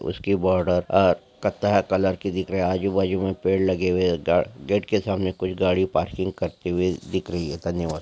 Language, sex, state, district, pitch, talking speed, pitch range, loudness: Hindi, male, Maharashtra, Aurangabad, 95 Hz, 215 wpm, 90-95 Hz, -23 LUFS